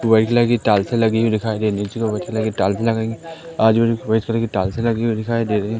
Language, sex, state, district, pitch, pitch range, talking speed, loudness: Hindi, male, Madhya Pradesh, Katni, 110 Hz, 110-115 Hz, 300 wpm, -19 LUFS